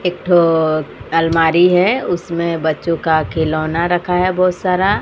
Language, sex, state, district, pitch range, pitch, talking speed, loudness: Hindi, female, Odisha, Sambalpur, 160-180 Hz, 170 Hz, 145 wpm, -15 LUFS